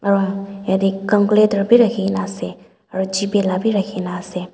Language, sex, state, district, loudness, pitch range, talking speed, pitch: Nagamese, female, Nagaland, Dimapur, -18 LUFS, 190-205 Hz, 160 wpm, 195 Hz